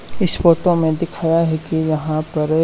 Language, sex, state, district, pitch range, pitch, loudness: Hindi, male, Haryana, Charkhi Dadri, 155-170 Hz, 160 Hz, -17 LUFS